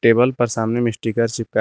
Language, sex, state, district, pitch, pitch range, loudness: Hindi, male, Jharkhand, Garhwa, 115 Hz, 115-120 Hz, -19 LUFS